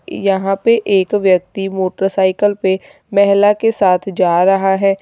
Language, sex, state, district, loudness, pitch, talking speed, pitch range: Hindi, female, Uttar Pradesh, Lalitpur, -14 LUFS, 195 Hz, 145 wpm, 190-205 Hz